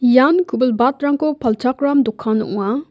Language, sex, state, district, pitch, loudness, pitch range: Garo, female, Meghalaya, West Garo Hills, 255 Hz, -17 LUFS, 230-285 Hz